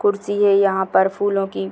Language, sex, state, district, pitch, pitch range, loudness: Hindi, female, Bihar, Purnia, 200 Hz, 190-205 Hz, -18 LUFS